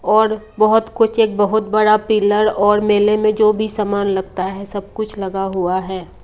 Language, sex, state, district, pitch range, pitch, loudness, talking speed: Hindi, female, Punjab, Kapurthala, 195-215 Hz, 210 Hz, -16 LUFS, 190 wpm